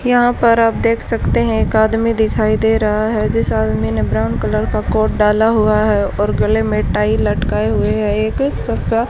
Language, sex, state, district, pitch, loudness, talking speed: Hindi, female, Haryana, Charkhi Dadri, 210 Hz, -15 LUFS, 200 wpm